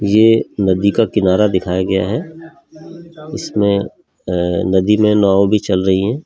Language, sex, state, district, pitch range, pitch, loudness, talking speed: Hindi, male, Delhi, New Delhi, 95-115 Hz, 105 Hz, -15 LUFS, 145 wpm